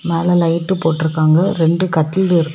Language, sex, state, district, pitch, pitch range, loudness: Tamil, female, Tamil Nadu, Kanyakumari, 165 Hz, 160-175 Hz, -15 LUFS